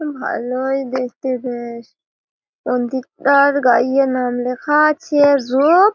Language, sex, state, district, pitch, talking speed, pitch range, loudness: Bengali, female, West Bengal, Malda, 260 Hz, 110 wpm, 250-285 Hz, -17 LUFS